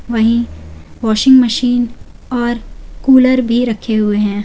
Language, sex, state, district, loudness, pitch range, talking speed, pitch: Hindi, female, Jharkhand, Garhwa, -13 LUFS, 215-245 Hz, 120 wpm, 235 Hz